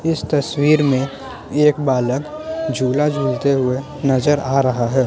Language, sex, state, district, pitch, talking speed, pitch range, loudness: Hindi, male, Bihar, Muzaffarpur, 140 Hz, 140 wpm, 130-150 Hz, -18 LUFS